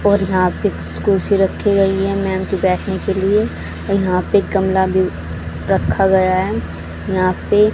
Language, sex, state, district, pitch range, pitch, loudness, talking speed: Hindi, female, Haryana, Charkhi Dadri, 185-195 Hz, 190 Hz, -17 LUFS, 165 wpm